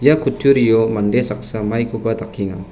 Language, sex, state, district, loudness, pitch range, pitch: Garo, male, Meghalaya, West Garo Hills, -17 LUFS, 105-125 Hz, 115 Hz